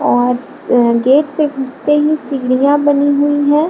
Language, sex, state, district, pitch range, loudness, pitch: Hindi, female, Bihar, Lakhisarai, 255-295 Hz, -13 LUFS, 285 Hz